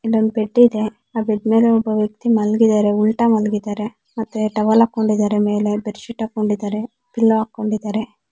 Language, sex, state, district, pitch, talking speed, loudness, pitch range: Kannada, female, Karnataka, Bijapur, 215 Hz, 135 wpm, -18 LUFS, 210-225 Hz